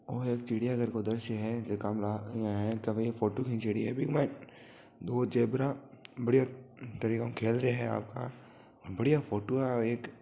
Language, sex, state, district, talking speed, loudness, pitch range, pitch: Marwari, male, Rajasthan, Nagaur, 195 wpm, -33 LUFS, 110-130 Hz, 120 Hz